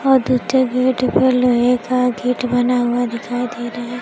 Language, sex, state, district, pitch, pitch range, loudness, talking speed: Hindi, female, Bihar, Kaimur, 250 Hz, 245-255 Hz, -17 LUFS, 195 wpm